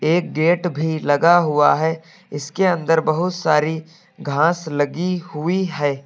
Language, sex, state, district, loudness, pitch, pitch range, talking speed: Hindi, male, Uttar Pradesh, Lucknow, -19 LUFS, 160 Hz, 150-175 Hz, 140 wpm